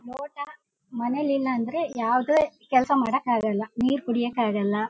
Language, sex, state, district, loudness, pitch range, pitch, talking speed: Kannada, female, Karnataka, Shimoga, -25 LUFS, 230-280 Hz, 250 Hz, 135 wpm